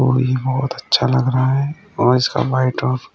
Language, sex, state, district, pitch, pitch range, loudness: Hindi, male, Uttar Pradesh, Shamli, 130 Hz, 130-135 Hz, -17 LUFS